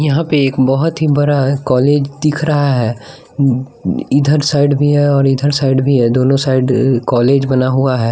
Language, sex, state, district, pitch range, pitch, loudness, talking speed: Hindi, male, Bihar, West Champaran, 130-145 Hz, 135 Hz, -13 LUFS, 185 wpm